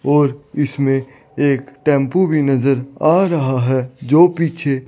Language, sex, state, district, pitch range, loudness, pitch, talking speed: Hindi, male, Chandigarh, Chandigarh, 135-155 Hz, -16 LUFS, 140 Hz, 145 wpm